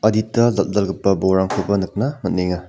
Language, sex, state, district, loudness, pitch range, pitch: Garo, male, Meghalaya, South Garo Hills, -19 LUFS, 95-110 Hz, 100 Hz